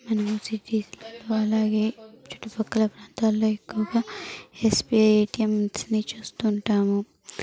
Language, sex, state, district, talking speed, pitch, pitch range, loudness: Telugu, female, Andhra Pradesh, Chittoor, 95 wpm, 220 Hz, 210-220 Hz, -25 LUFS